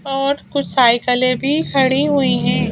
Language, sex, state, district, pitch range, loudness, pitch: Hindi, female, Madhya Pradesh, Bhopal, 245-280 Hz, -15 LUFS, 265 Hz